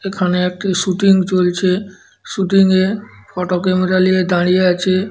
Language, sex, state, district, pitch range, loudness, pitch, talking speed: Bengali, female, West Bengal, Dakshin Dinajpur, 180-190 Hz, -15 LUFS, 185 Hz, 115 wpm